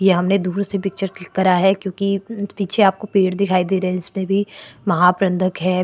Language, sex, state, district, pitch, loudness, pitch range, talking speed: Hindi, female, Chhattisgarh, Korba, 190 Hz, -19 LUFS, 185-195 Hz, 205 wpm